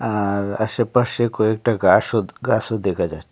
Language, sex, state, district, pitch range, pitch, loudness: Bengali, male, Assam, Hailakandi, 105-120 Hz, 110 Hz, -20 LUFS